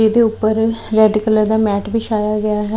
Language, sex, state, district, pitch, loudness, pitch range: Punjabi, female, Chandigarh, Chandigarh, 215 Hz, -16 LUFS, 215-220 Hz